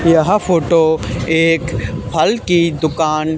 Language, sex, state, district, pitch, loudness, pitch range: Hindi, male, Haryana, Charkhi Dadri, 160 Hz, -15 LUFS, 155-170 Hz